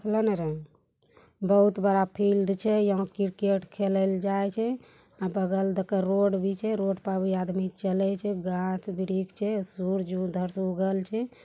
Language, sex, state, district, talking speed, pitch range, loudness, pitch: Angika, female, Bihar, Bhagalpur, 135 wpm, 190-200 Hz, -28 LUFS, 195 Hz